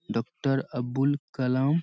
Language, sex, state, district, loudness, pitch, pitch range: Hindi, male, Bihar, Saharsa, -28 LUFS, 135 Hz, 125-140 Hz